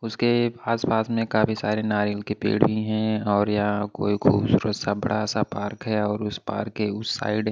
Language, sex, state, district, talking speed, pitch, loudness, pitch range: Hindi, male, Delhi, New Delhi, 205 wpm, 105 Hz, -24 LUFS, 105-110 Hz